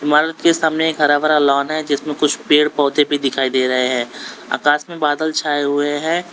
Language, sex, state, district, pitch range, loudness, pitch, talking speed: Hindi, male, Uttar Pradesh, Lalitpur, 145-155 Hz, -17 LUFS, 150 Hz, 220 wpm